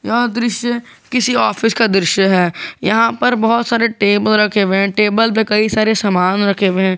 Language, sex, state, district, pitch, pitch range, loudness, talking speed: Hindi, male, Jharkhand, Garhwa, 215 Hz, 195-230 Hz, -14 LUFS, 190 wpm